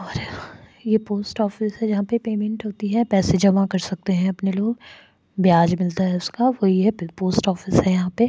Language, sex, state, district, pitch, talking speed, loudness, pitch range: Hindi, female, Goa, North and South Goa, 195 Hz, 210 wpm, -21 LUFS, 185-215 Hz